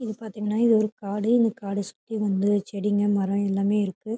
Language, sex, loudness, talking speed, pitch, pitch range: Tamil, female, -25 LUFS, 185 wpm, 205 Hz, 200-220 Hz